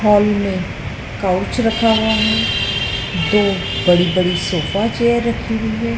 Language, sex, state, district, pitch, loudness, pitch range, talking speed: Hindi, female, Madhya Pradesh, Dhar, 200 Hz, -17 LUFS, 175-225 Hz, 140 wpm